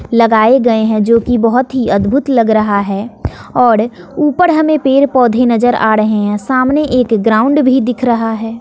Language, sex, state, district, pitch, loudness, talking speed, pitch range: Hindi, female, Bihar, West Champaran, 235 Hz, -11 LUFS, 190 wpm, 220-260 Hz